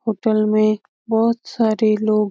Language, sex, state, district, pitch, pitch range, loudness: Hindi, female, Bihar, Lakhisarai, 215 Hz, 215-225 Hz, -18 LUFS